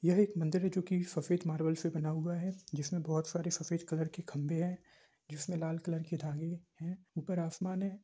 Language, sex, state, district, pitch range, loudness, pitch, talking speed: Hindi, male, Bihar, Gopalganj, 160-180 Hz, -36 LUFS, 170 Hz, 210 wpm